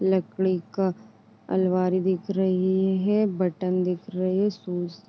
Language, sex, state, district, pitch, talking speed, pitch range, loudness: Hindi, female, Uttar Pradesh, Deoria, 185 Hz, 140 wpm, 180-190 Hz, -25 LUFS